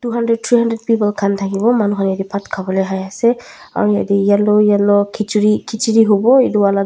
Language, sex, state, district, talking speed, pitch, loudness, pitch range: Nagamese, female, Nagaland, Dimapur, 95 wpm, 210 Hz, -15 LUFS, 200-230 Hz